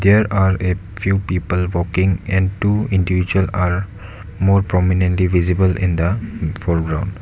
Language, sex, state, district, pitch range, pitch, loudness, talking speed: English, male, Arunachal Pradesh, Lower Dibang Valley, 90-100 Hz, 95 Hz, -18 LUFS, 135 wpm